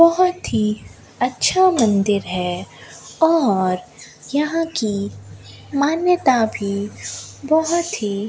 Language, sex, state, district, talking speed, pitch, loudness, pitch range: Hindi, female, Rajasthan, Bikaner, 95 wpm, 220 Hz, -19 LUFS, 200-325 Hz